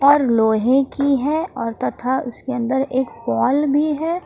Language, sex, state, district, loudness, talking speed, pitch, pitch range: Hindi, female, Jharkhand, Palamu, -19 LUFS, 170 wpm, 265 Hz, 245-285 Hz